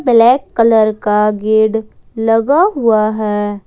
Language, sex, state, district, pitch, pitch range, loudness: Hindi, female, Jharkhand, Ranchi, 220 Hz, 215-230 Hz, -13 LUFS